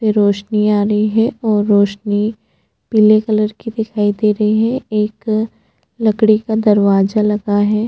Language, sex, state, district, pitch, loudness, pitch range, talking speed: Hindi, female, Chhattisgarh, Jashpur, 215 Hz, -15 LUFS, 210-220 Hz, 145 wpm